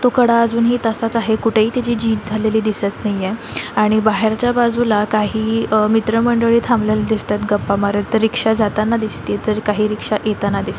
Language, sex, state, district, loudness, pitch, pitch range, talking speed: Marathi, female, Maharashtra, Chandrapur, -17 LUFS, 220 Hz, 210-230 Hz, 185 wpm